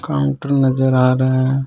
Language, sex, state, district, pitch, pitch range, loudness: Rajasthani, male, Rajasthan, Churu, 130 Hz, 130-135 Hz, -16 LUFS